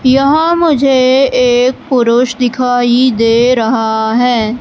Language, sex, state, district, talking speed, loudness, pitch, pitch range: Hindi, female, Madhya Pradesh, Katni, 105 wpm, -10 LUFS, 250 Hz, 235-260 Hz